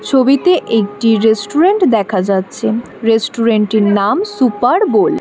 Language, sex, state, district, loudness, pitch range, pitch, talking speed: Bengali, female, West Bengal, Alipurduar, -13 LUFS, 215-290 Hz, 230 Hz, 115 wpm